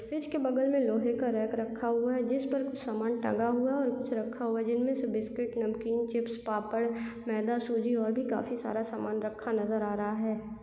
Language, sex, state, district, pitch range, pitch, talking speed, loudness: Hindi, female, Chhattisgarh, Raigarh, 220-245 Hz, 230 Hz, 220 wpm, -32 LUFS